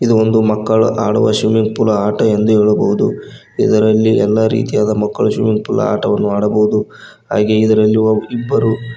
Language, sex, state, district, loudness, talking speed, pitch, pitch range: Kannada, male, Karnataka, Koppal, -14 LUFS, 135 wpm, 110 Hz, 105-110 Hz